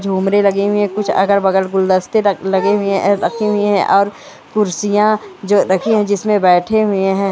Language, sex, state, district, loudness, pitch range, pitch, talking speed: Hindi, female, West Bengal, Purulia, -14 LUFS, 195-210 Hz, 200 Hz, 170 wpm